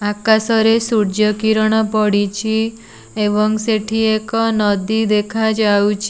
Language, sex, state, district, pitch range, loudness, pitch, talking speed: Odia, female, Odisha, Nuapada, 210-220 Hz, -16 LUFS, 215 Hz, 90 wpm